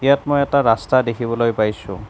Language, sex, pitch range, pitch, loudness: Assamese, male, 110-140 Hz, 120 Hz, -18 LUFS